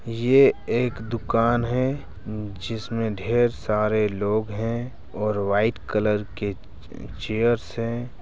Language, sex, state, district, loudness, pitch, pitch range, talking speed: Hindi, male, Bihar, Araria, -24 LUFS, 110 Hz, 105-120 Hz, 115 wpm